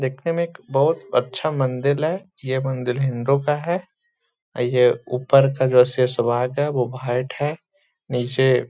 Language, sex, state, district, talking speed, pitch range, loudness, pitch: Hindi, male, Bihar, Gaya, 165 wpm, 125-150 Hz, -21 LUFS, 130 Hz